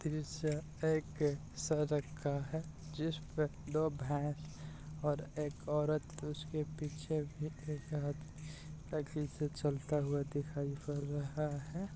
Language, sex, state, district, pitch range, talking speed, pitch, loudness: Hindi, male, Bihar, East Champaran, 145-155 Hz, 100 wpm, 150 Hz, -39 LUFS